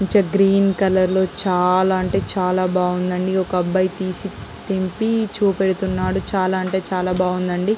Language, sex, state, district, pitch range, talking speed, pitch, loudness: Telugu, female, Andhra Pradesh, Guntur, 185-195 Hz, 130 wpm, 185 Hz, -19 LUFS